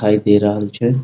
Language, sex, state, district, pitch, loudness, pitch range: Maithili, male, Bihar, Muzaffarpur, 105 Hz, -15 LUFS, 105-115 Hz